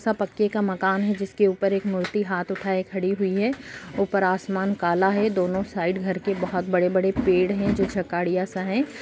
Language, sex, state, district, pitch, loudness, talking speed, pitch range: Hindi, female, Bihar, Kishanganj, 190 Hz, -24 LUFS, 195 wpm, 185-200 Hz